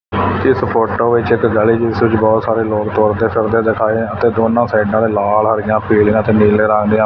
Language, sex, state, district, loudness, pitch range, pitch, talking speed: Punjabi, male, Punjab, Fazilka, -13 LUFS, 110-115 Hz, 110 Hz, 205 wpm